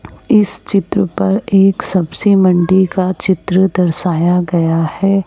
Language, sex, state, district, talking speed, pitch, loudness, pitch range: Hindi, male, Chhattisgarh, Raipur, 125 wpm, 185 Hz, -13 LUFS, 175-195 Hz